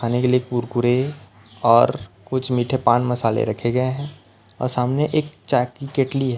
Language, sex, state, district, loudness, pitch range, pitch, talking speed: Hindi, male, Chhattisgarh, Raipur, -21 LUFS, 120-135 Hz, 125 Hz, 180 wpm